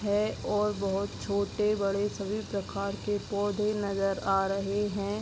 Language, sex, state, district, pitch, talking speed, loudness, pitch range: Hindi, female, Bihar, Bhagalpur, 200 Hz, 140 wpm, -30 LUFS, 195-210 Hz